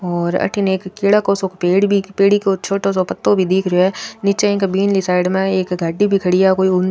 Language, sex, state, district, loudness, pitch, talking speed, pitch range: Rajasthani, female, Rajasthan, Nagaur, -16 LUFS, 190 Hz, 260 wpm, 185-200 Hz